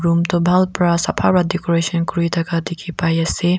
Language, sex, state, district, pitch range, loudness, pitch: Nagamese, female, Nagaland, Kohima, 170-180 Hz, -18 LUFS, 170 Hz